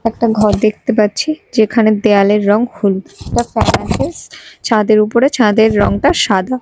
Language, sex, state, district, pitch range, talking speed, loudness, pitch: Bengali, female, Odisha, Malkangiri, 210-235 Hz, 125 wpm, -13 LUFS, 215 Hz